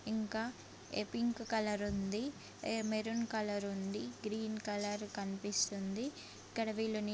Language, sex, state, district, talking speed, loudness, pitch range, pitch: Telugu, female, Andhra Pradesh, Guntur, 120 wpm, -39 LUFS, 205-220 Hz, 215 Hz